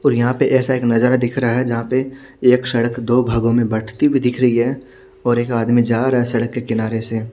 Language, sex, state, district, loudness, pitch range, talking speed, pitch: Hindi, male, Chhattisgarh, Raipur, -17 LUFS, 115-130 Hz, 255 wpm, 120 Hz